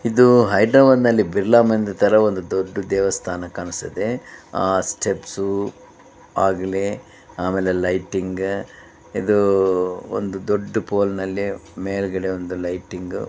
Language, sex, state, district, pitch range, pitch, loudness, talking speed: Kannada, male, Karnataka, Bellary, 95-100 Hz, 95 Hz, -20 LUFS, 105 wpm